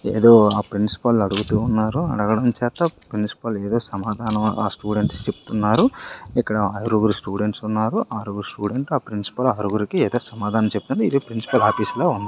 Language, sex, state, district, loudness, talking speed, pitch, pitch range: Telugu, male, Andhra Pradesh, Srikakulam, -21 LUFS, 140 wpm, 110 Hz, 105-115 Hz